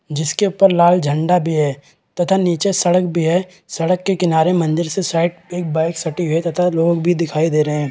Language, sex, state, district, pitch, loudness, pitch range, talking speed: Hindi, male, Chhattisgarh, Raigarh, 170 Hz, -17 LUFS, 160-180 Hz, 220 wpm